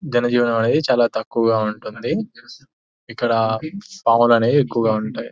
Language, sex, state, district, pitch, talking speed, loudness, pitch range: Telugu, male, Telangana, Nalgonda, 115 Hz, 115 wpm, -19 LUFS, 110-125 Hz